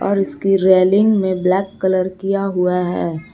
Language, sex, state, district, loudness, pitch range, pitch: Hindi, female, Jharkhand, Palamu, -16 LUFS, 185-195 Hz, 190 Hz